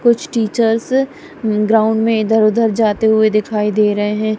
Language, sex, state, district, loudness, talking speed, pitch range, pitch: Hindi, female, Punjab, Kapurthala, -15 LUFS, 165 wpm, 215-230 Hz, 220 Hz